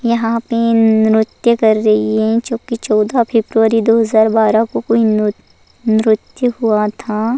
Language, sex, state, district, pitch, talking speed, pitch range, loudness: Hindi, female, Goa, North and South Goa, 225 Hz, 145 wpm, 220-230 Hz, -14 LUFS